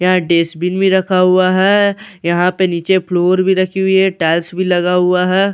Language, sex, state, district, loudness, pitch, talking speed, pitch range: Hindi, male, Bihar, Katihar, -13 LUFS, 185 Hz, 205 wpm, 180-190 Hz